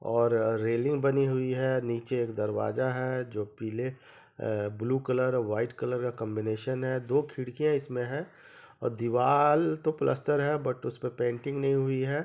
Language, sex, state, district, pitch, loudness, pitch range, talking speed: Hindi, male, Jharkhand, Sahebganj, 130 Hz, -29 LUFS, 115-140 Hz, 165 wpm